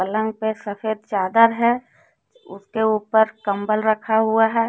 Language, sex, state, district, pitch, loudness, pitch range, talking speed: Hindi, female, Jharkhand, Deoghar, 220 Hz, -20 LUFS, 215-225 Hz, 140 wpm